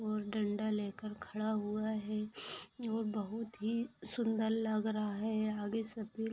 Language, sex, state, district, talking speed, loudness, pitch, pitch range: Bhojpuri, female, Bihar, Saran, 150 wpm, -38 LUFS, 215 Hz, 210-220 Hz